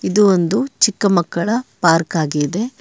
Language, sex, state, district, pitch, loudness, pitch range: Kannada, male, Karnataka, Bangalore, 195 Hz, -16 LUFS, 165-220 Hz